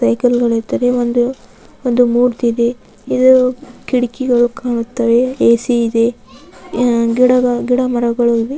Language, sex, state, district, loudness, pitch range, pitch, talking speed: Kannada, female, Karnataka, Raichur, -14 LUFS, 235-250 Hz, 245 Hz, 120 wpm